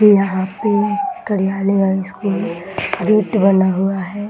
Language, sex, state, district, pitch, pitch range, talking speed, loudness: Hindi, female, Bihar, Muzaffarpur, 195 Hz, 190-210 Hz, 155 wpm, -17 LUFS